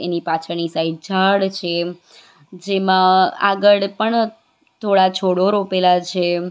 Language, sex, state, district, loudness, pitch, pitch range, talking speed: Gujarati, female, Gujarat, Valsad, -17 LUFS, 185 Hz, 175-200 Hz, 110 wpm